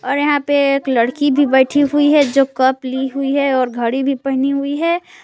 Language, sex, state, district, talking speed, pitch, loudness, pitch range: Hindi, female, Jharkhand, Palamu, 230 wpm, 275 Hz, -15 LUFS, 265-285 Hz